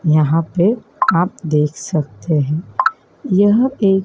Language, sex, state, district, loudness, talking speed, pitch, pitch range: Hindi, male, Madhya Pradesh, Dhar, -17 LUFS, 120 wpm, 170 Hz, 155-200 Hz